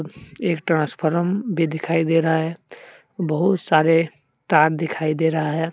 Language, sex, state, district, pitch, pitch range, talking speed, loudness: Hindi, male, Jharkhand, Deoghar, 165 Hz, 155-170 Hz, 145 wpm, -20 LUFS